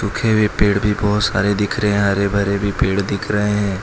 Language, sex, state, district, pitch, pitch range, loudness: Hindi, male, Gujarat, Valsad, 105 Hz, 100-105 Hz, -17 LUFS